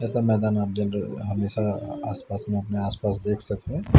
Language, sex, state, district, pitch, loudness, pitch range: Hindi, male, Haryana, Rohtak, 105 Hz, -27 LUFS, 100-105 Hz